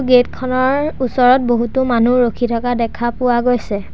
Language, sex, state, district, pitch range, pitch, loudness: Assamese, male, Assam, Sonitpur, 240-255 Hz, 245 Hz, -15 LUFS